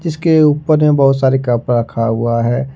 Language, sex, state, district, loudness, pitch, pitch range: Hindi, male, Jharkhand, Ranchi, -13 LUFS, 135 Hz, 120-150 Hz